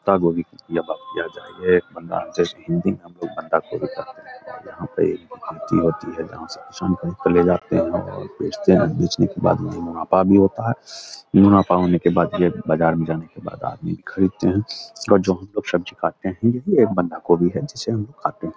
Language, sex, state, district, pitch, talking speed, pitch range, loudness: Hindi, male, Bihar, Araria, 95 Hz, 230 wpm, 85-100 Hz, -20 LUFS